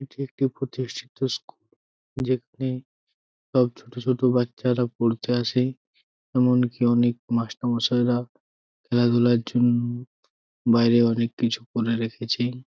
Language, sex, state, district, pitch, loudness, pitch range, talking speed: Bengali, male, West Bengal, Jhargram, 120 Hz, -24 LUFS, 120-125 Hz, 120 wpm